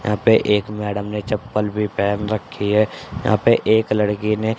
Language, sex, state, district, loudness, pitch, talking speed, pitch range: Hindi, male, Haryana, Charkhi Dadri, -19 LUFS, 105 Hz, 210 wpm, 105-110 Hz